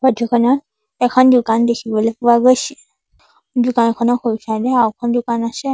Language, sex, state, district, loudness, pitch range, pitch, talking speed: Assamese, female, Assam, Sonitpur, -15 LUFS, 230-250 Hz, 240 Hz, 155 wpm